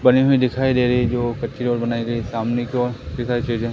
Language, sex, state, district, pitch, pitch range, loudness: Hindi, male, Madhya Pradesh, Umaria, 120 Hz, 120-125 Hz, -20 LUFS